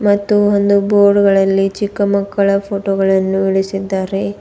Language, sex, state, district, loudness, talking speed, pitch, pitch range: Kannada, female, Karnataka, Bidar, -14 LUFS, 120 wpm, 200 Hz, 195-200 Hz